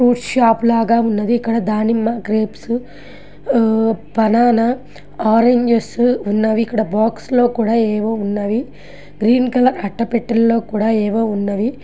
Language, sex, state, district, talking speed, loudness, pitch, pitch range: Telugu, female, Andhra Pradesh, Guntur, 115 wpm, -16 LUFS, 230 Hz, 220-235 Hz